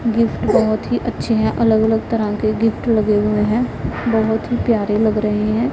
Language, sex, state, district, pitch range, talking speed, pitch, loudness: Hindi, female, Punjab, Pathankot, 215-230 Hz, 200 wpm, 220 Hz, -17 LUFS